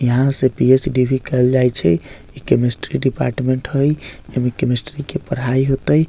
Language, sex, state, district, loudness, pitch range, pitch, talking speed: Bajjika, male, Bihar, Vaishali, -17 LUFS, 125-135 Hz, 130 Hz, 160 wpm